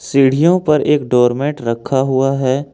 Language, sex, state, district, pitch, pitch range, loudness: Hindi, male, Jharkhand, Ranchi, 135 Hz, 130-150 Hz, -14 LUFS